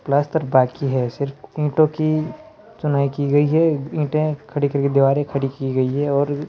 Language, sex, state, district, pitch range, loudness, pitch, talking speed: Hindi, male, Rajasthan, Jaipur, 140-155 Hz, -20 LUFS, 145 Hz, 185 wpm